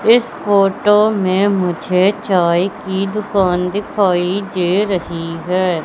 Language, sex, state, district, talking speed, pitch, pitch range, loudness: Hindi, female, Madhya Pradesh, Katni, 115 wpm, 190 Hz, 180-205 Hz, -16 LUFS